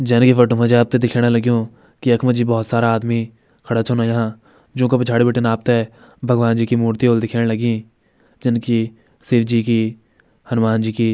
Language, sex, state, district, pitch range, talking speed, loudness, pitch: Hindi, male, Uttarakhand, Uttarkashi, 115-120 Hz, 190 wpm, -17 LUFS, 115 Hz